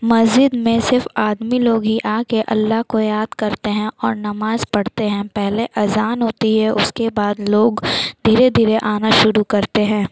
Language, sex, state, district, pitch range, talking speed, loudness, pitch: Hindi, female, Bihar, Lakhisarai, 210-230 Hz, 160 wpm, -17 LUFS, 220 Hz